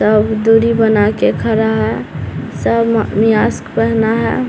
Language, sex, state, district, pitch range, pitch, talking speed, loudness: Hindi, female, Bihar, Samastipur, 220-225 Hz, 220 Hz, 135 wpm, -14 LUFS